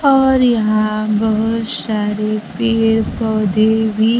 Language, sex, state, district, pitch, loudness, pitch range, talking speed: Hindi, female, Bihar, Kaimur, 220 Hz, -15 LUFS, 215-225 Hz, 100 wpm